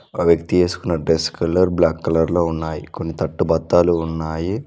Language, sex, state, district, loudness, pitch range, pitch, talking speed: Telugu, male, Telangana, Mahabubabad, -19 LUFS, 80-85 Hz, 85 Hz, 165 wpm